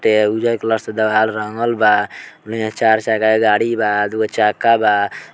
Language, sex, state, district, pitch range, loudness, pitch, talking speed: Bhojpuri, male, Bihar, Muzaffarpur, 105-110 Hz, -16 LUFS, 110 Hz, 170 wpm